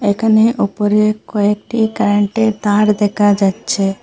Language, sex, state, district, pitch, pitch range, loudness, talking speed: Bengali, female, Assam, Hailakandi, 210 Hz, 205-220 Hz, -14 LUFS, 120 wpm